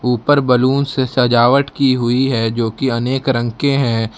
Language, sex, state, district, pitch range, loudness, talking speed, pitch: Hindi, male, Jharkhand, Palamu, 120-135 Hz, -15 LUFS, 185 wpm, 130 Hz